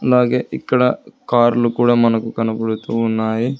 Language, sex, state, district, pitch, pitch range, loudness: Telugu, male, Telangana, Hyderabad, 120 Hz, 115-125 Hz, -17 LUFS